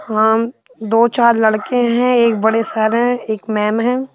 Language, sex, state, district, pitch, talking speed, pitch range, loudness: Hindi, male, Madhya Pradesh, Bhopal, 225 Hz, 175 wpm, 220-240 Hz, -15 LUFS